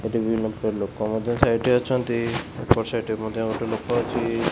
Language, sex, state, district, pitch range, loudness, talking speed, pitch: Odia, male, Odisha, Khordha, 110-120 Hz, -24 LUFS, 200 wpm, 115 Hz